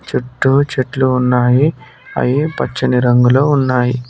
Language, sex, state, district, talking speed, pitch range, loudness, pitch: Telugu, male, Telangana, Mahabubabad, 100 wpm, 125-135 Hz, -14 LUFS, 130 Hz